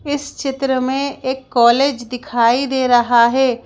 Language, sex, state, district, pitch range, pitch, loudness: Hindi, female, Madhya Pradesh, Bhopal, 245-270 Hz, 260 Hz, -16 LUFS